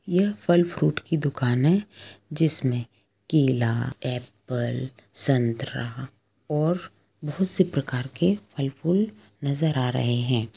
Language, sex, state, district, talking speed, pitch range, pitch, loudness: Hindi, female, Jharkhand, Sahebganj, 120 wpm, 120-165 Hz, 135 Hz, -23 LUFS